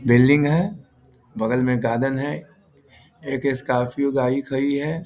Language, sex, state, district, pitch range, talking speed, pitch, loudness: Hindi, male, Bihar, Vaishali, 125-145 Hz, 130 wpm, 140 Hz, -21 LUFS